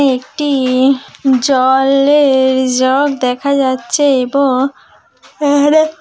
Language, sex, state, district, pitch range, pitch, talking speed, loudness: Bengali, female, West Bengal, Malda, 260-285 Hz, 270 Hz, 80 wpm, -12 LUFS